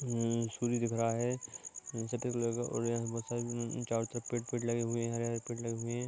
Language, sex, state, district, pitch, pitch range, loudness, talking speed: Hindi, male, Bihar, Gopalganj, 115 Hz, 115-120 Hz, -36 LUFS, 255 wpm